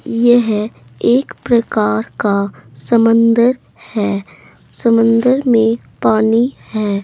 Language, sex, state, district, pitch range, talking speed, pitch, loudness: Hindi, female, Uttar Pradesh, Saharanpur, 205-235 Hz, 85 wpm, 230 Hz, -14 LUFS